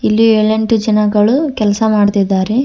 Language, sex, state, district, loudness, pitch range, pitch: Kannada, female, Karnataka, Koppal, -12 LUFS, 210-220 Hz, 215 Hz